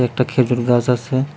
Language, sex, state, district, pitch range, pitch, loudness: Bengali, male, Tripura, West Tripura, 120-130 Hz, 125 Hz, -17 LUFS